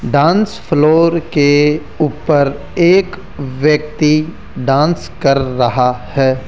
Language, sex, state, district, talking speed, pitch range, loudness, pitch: Hindi, male, Rajasthan, Jaipur, 90 wpm, 135-160 Hz, -13 LUFS, 150 Hz